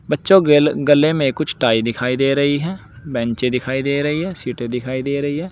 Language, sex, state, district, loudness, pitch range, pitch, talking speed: Hindi, male, Uttar Pradesh, Saharanpur, -17 LUFS, 125-150 Hz, 140 Hz, 215 wpm